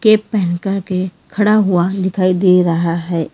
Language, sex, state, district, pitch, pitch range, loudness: Hindi, female, Karnataka, Bangalore, 185 Hz, 175-195 Hz, -15 LUFS